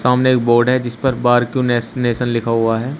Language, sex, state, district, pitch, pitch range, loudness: Hindi, male, Uttar Pradesh, Shamli, 120 Hz, 120-125 Hz, -16 LUFS